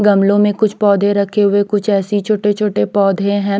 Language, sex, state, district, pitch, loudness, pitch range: Hindi, female, Chandigarh, Chandigarh, 205 Hz, -14 LUFS, 200-205 Hz